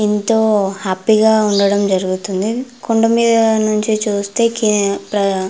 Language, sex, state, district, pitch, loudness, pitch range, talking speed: Telugu, female, Andhra Pradesh, Anantapur, 210 Hz, -15 LUFS, 200-220 Hz, 85 wpm